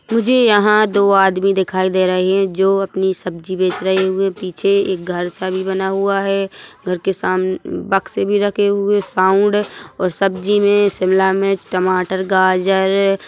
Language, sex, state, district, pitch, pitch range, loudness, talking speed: Hindi, female, Chhattisgarh, Bilaspur, 190 Hz, 185-200 Hz, -16 LUFS, 165 wpm